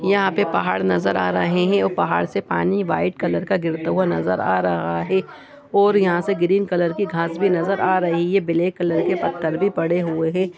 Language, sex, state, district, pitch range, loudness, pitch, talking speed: Hindi, male, Bihar, Lakhisarai, 155-190 Hz, -20 LUFS, 175 Hz, 245 wpm